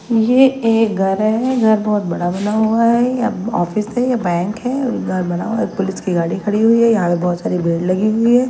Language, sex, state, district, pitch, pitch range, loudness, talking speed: Hindi, female, Delhi, New Delhi, 215 Hz, 185-230 Hz, -16 LUFS, 240 wpm